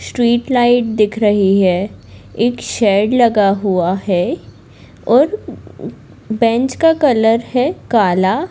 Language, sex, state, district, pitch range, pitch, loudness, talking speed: Hindi, female, Bihar, Lakhisarai, 190-245 Hz, 220 Hz, -14 LUFS, 120 wpm